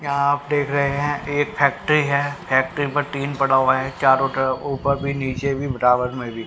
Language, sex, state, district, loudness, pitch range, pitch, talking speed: Hindi, male, Haryana, Rohtak, -20 LUFS, 130-145 Hz, 140 Hz, 215 wpm